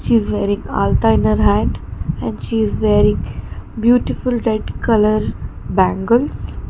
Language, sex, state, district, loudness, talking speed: English, female, Karnataka, Bangalore, -17 LUFS, 135 wpm